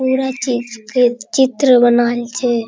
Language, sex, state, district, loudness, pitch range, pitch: Maithili, female, Bihar, Araria, -15 LUFS, 240-260 Hz, 245 Hz